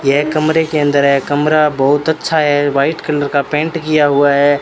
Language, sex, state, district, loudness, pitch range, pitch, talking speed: Hindi, male, Rajasthan, Bikaner, -13 LUFS, 140-155 Hz, 145 Hz, 210 wpm